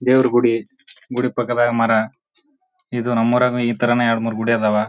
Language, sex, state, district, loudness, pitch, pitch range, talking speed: Kannada, male, Karnataka, Bijapur, -18 LUFS, 120 Hz, 115-125 Hz, 160 wpm